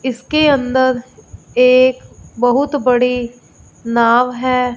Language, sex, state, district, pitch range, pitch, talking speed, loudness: Hindi, female, Punjab, Fazilka, 245-255 Hz, 250 Hz, 90 wpm, -14 LUFS